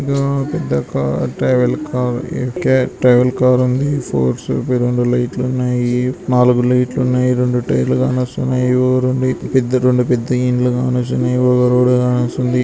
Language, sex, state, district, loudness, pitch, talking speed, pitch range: Telugu, male, Andhra Pradesh, Anantapur, -16 LUFS, 125 Hz, 130 wpm, 125-130 Hz